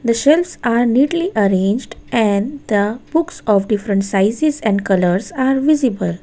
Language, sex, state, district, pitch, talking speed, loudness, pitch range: English, female, Gujarat, Valsad, 230 Hz, 145 wpm, -16 LUFS, 200-270 Hz